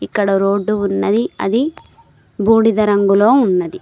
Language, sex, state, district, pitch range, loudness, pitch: Telugu, female, Telangana, Mahabubabad, 200-225 Hz, -15 LUFS, 205 Hz